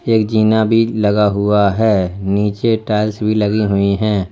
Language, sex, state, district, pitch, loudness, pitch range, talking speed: Hindi, male, Uttar Pradesh, Lalitpur, 105 Hz, -15 LUFS, 100-110 Hz, 165 wpm